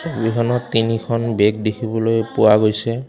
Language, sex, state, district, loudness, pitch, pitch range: Assamese, male, Assam, Kamrup Metropolitan, -18 LUFS, 115 Hz, 110-115 Hz